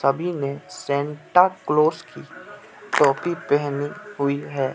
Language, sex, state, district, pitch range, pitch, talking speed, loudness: Hindi, male, Jharkhand, Ranchi, 140-175 Hz, 145 Hz, 115 wpm, -22 LUFS